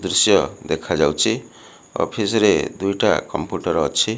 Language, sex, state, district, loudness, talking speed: Odia, male, Odisha, Malkangiri, -19 LUFS, 100 wpm